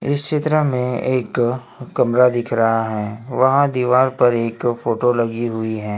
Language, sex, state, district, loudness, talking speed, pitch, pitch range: Hindi, male, Maharashtra, Gondia, -18 LUFS, 160 wpm, 125 Hz, 115-130 Hz